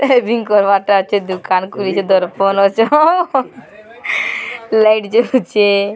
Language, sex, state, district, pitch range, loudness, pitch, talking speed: Odia, female, Odisha, Sambalpur, 195-235 Hz, -14 LUFS, 205 Hz, 120 wpm